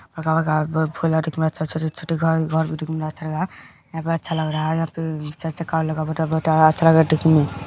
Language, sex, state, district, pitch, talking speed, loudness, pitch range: Maithili, male, Bihar, Kishanganj, 160 Hz, 210 wpm, -21 LUFS, 155-160 Hz